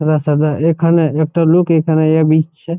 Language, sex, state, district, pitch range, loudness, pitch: Bengali, male, West Bengal, Jhargram, 155-165 Hz, -13 LUFS, 160 Hz